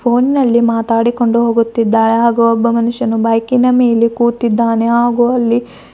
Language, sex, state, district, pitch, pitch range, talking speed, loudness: Kannada, female, Karnataka, Bidar, 235 Hz, 230-240 Hz, 120 wpm, -12 LUFS